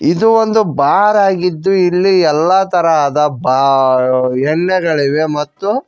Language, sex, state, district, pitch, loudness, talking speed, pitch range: Kannada, male, Karnataka, Koppal, 165 Hz, -12 LUFS, 100 wpm, 140-190 Hz